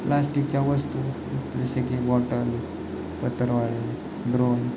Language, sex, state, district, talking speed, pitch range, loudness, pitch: Marathi, male, Maharashtra, Chandrapur, 115 wpm, 120-140 Hz, -26 LUFS, 125 Hz